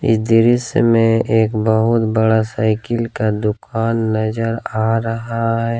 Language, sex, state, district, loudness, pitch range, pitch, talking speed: Hindi, male, Jharkhand, Ranchi, -16 LUFS, 110-115 Hz, 115 Hz, 125 wpm